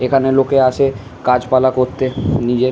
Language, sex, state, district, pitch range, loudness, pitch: Bengali, male, West Bengal, Malda, 125-135 Hz, -15 LUFS, 130 Hz